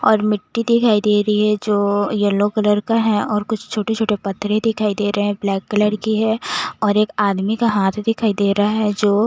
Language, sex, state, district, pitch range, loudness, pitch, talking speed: Hindi, female, Chandigarh, Chandigarh, 205-220 Hz, -18 LUFS, 210 Hz, 220 wpm